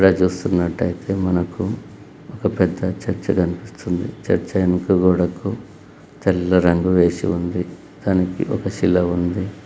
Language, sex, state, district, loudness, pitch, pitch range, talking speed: Telugu, male, Telangana, Karimnagar, -20 LUFS, 90 Hz, 90-95 Hz, 125 wpm